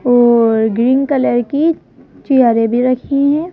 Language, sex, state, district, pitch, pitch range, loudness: Hindi, female, Madhya Pradesh, Bhopal, 255 Hz, 235-280 Hz, -13 LUFS